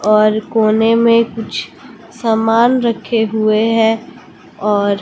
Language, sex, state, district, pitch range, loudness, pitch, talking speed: Hindi, female, Bihar, West Champaran, 215-230 Hz, -14 LUFS, 225 Hz, 110 wpm